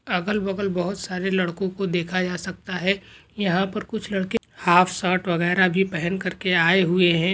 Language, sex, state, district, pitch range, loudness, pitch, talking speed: Hindi, male, West Bengal, Jhargram, 180-195 Hz, -22 LUFS, 185 Hz, 190 wpm